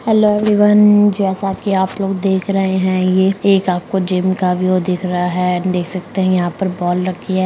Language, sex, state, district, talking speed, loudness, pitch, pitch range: Hindi, male, Bihar, Saran, 210 wpm, -15 LUFS, 190 Hz, 180-195 Hz